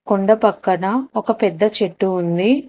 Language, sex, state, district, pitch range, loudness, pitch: Telugu, female, Telangana, Hyderabad, 190-225 Hz, -18 LUFS, 205 Hz